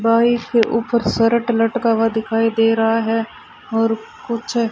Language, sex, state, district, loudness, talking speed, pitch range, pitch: Hindi, female, Rajasthan, Bikaner, -18 LUFS, 150 wpm, 225-235 Hz, 230 Hz